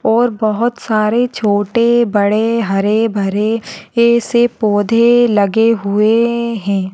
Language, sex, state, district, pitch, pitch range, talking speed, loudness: Hindi, female, Maharashtra, Solapur, 225 Hz, 205-235 Hz, 105 wpm, -14 LUFS